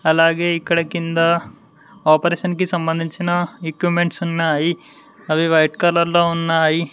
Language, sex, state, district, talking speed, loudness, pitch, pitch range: Telugu, male, Telangana, Mahabubabad, 110 wpm, -18 LUFS, 170 Hz, 165-175 Hz